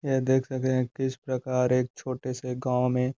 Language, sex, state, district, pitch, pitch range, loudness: Hindi, male, Uttar Pradesh, Gorakhpur, 130 Hz, 125-130 Hz, -28 LUFS